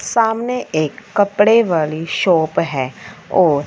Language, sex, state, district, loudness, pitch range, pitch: Hindi, female, Punjab, Fazilka, -17 LUFS, 155-225 Hz, 175 Hz